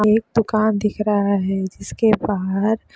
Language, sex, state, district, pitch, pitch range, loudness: Hindi, female, Chhattisgarh, Sukma, 210 Hz, 200-220 Hz, -20 LUFS